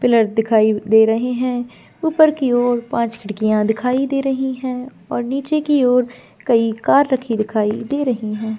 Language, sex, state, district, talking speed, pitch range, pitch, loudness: Hindi, female, Jharkhand, Jamtara, 180 wpm, 220-260 Hz, 245 Hz, -18 LUFS